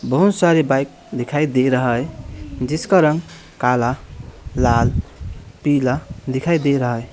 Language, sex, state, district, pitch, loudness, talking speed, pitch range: Hindi, male, West Bengal, Alipurduar, 130 Hz, -18 LUFS, 135 wpm, 125-150 Hz